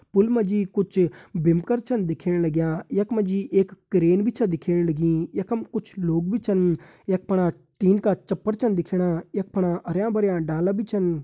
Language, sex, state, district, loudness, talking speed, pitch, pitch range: Hindi, male, Uttarakhand, Uttarkashi, -24 LUFS, 185 wpm, 190 Hz, 170-205 Hz